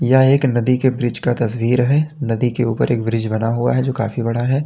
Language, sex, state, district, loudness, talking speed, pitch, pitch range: Hindi, male, Uttar Pradesh, Lalitpur, -17 LUFS, 260 wpm, 120 Hz, 115-130 Hz